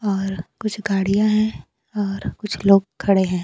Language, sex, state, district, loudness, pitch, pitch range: Hindi, female, Bihar, Kaimur, -20 LUFS, 200 Hz, 195-210 Hz